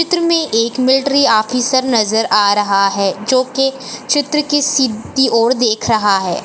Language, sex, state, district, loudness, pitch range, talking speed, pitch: Hindi, female, Chhattisgarh, Balrampur, -14 LUFS, 220-270 Hz, 165 wpm, 250 Hz